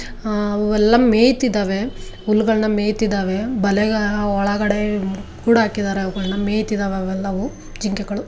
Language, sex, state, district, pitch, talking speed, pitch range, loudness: Kannada, female, Karnataka, Dharwad, 210 Hz, 80 wpm, 200-215 Hz, -19 LUFS